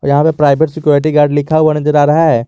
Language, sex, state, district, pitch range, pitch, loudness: Hindi, male, Jharkhand, Garhwa, 145-155 Hz, 150 Hz, -11 LUFS